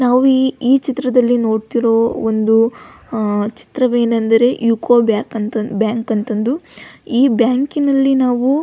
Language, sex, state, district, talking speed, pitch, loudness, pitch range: Kannada, female, Karnataka, Belgaum, 120 wpm, 240 Hz, -15 LUFS, 225-260 Hz